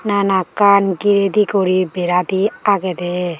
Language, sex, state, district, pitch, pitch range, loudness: Chakma, female, Tripura, Unakoti, 195 Hz, 180-200 Hz, -16 LUFS